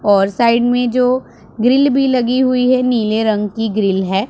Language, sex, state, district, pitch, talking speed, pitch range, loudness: Hindi, female, Punjab, Pathankot, 240 Hz, 195 wpm, 210-255 Hz, -14 LUFS